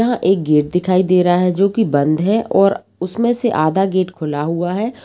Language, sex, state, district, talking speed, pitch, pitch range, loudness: Hindi, female, Bihar, Jamui, 215 wpm, 185 Hz, 170-210 Hz, -16 LUFS